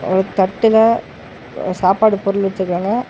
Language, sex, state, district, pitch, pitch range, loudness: Tamil, male, Tamil Nadu, Namakkal, 195 Hz, 190-220 Hz, -16 LUFS